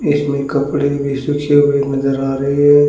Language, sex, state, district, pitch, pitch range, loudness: Hindi, male, Haryana, Rohtak, 140 Hz, 140-145 Hz, -15 LUFS